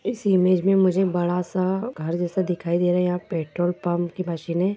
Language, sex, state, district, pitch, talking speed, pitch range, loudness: Hindi, female, Bihar, Madhepura, 180 Hz, 225 wpm, 175-185 Hz, -23 LUFS